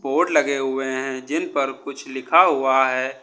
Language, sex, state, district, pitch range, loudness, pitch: Hindi, male, Uttar Pradesh, Lucknow, 130-140 Hz, -20 LUFS, 135 Hz